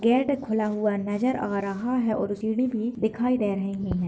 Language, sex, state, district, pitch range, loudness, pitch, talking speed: Hindi, female, Uttar Pradesh, Gorakhpur, 205-245 Hz, -26 LUFS, 220 Hz, 205 wpm